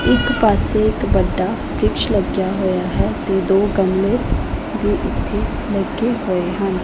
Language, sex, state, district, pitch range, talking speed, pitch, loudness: Punjabi, female, Punjab, Pathankot, 190-220 Hz, 140 wpm, 195 Hz, -18 LUFS